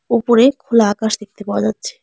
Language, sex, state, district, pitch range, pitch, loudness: Bengali, female, West Bengal, Alipurduar, 210-255 Hz, 235 Hz, -16 LUFS